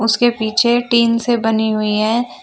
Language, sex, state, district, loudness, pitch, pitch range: Hindi, female, Uttar Pradesh, Shamli, -15 LUFS, 230 Hz, 220-240 Hz